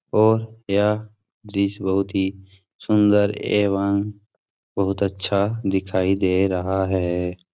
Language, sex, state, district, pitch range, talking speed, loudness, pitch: Hindi, male, Bihar, Supaul, 95-105 Hz, 105 wpm, -21 LUFS, 100 Hz